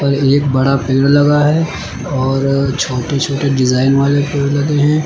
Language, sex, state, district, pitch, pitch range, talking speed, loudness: Hindi, male, Uttar Pradesh, Lucknow, 140 Hz, 135-145 Hz, 165 wpm, -14 LUFS